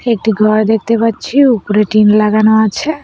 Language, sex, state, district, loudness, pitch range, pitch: Bengali, female, West Bengal, Cooch Behar, -11 LUFS, 215-230 Hz, 220 Hz